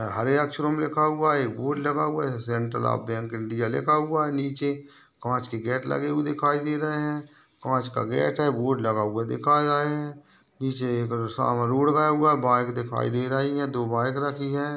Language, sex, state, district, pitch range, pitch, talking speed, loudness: Hindi, male, Rajasthan, Nagaur, 120-150 Hz, 140 Hz, 220 wpm, -25 LUFS